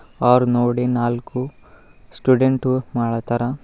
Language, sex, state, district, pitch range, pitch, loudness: Kannada, male, Karnataka, Bidar, 120-130 Hz, 125 Hz, -19 LUFS